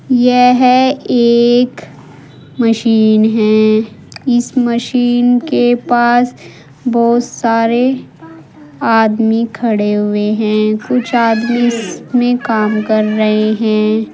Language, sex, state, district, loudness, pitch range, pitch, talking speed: Hindi, female, Uttar Pradesh, Saharanpur, -12 LUFS, 215-245 Hz, 230 Hz, 90 wpm